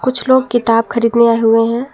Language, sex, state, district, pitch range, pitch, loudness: Hindi, female, Jharkhand, Garhwa, 230-250 Hz, 235 Hz, -13 LUFS